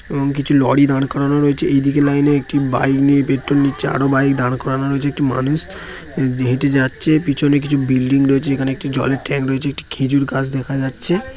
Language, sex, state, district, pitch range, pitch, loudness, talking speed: Bengali, male, West Bengal, Dakshin Dinajpur, 135-140 Hz, 140 Hz, -16 LUFS, 190 wpm